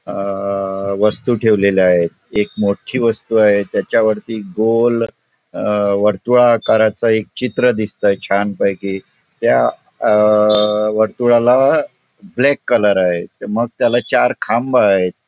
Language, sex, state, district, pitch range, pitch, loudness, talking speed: Marathi, male, Goa, North and South Goa, 100-115 Hz, 105 Hz, -15 LUFS, 110 wpm